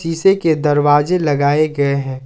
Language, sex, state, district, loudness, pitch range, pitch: Hindi, male, Jharkhand, Ranchi, -15 LUFS, 140-165 Hz, 150 Hz